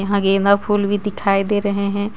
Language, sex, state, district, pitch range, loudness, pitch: Hindi, female, Jharkhand, Ranchi, 200-205 Hz, -18 LUFS, 200 Hz